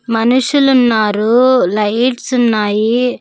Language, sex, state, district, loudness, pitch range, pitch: Telugu, female, Andhra Pradesh, Sri Satya Sai, -12 LUFS, 215-255 Hz, 240 Hz